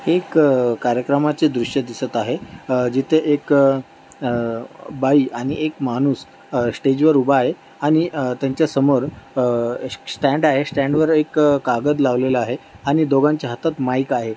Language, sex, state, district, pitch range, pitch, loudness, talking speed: Marathi, male, Maharashtra, Dhule, 125-150 Hz, 135 Hz, -19 LUFS, 155 wpm